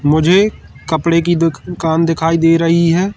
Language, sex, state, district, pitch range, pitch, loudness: Hindi, male, Madhya Pradesh, Katni, 160-170 Hz, 165 Hz, -14 LUFS